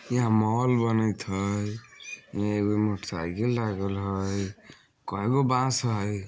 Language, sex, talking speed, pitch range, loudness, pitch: Bhojpuri, male, 115 wpm, 100-120 Hz, -27 LUFS, 105 Hz